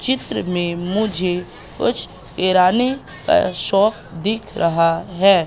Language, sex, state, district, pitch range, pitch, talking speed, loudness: Hindi, female, Madhya Pradesh, Katni, 175-215 Hz, 185 Hz, 110 wpm, -19 LUFS